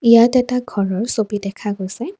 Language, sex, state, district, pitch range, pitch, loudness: Assamese, female, Assam, Kamrup Metropolitan, 200-245 Hz, 220 Hz, -18 LUFS